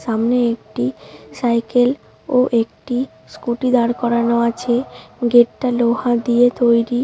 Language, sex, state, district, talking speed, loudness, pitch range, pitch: Bengali, female, West Bengal, Paschim Medinipur, 130 wpm, -17 LUFS, 235-245 Hz, 240 Hz